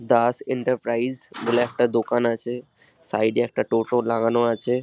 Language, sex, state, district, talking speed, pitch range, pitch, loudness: Bengali, male, West Bengal, Dakshin Dinajpur, 150 wpm, 115-125 Hz, 120 Hz, -23 LUFS